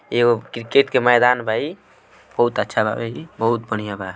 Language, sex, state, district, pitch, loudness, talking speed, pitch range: Hindi, male, Bihar, Gopalganj, 115 Hz, -19 LUFS, 190 wpm, 110-125 Hz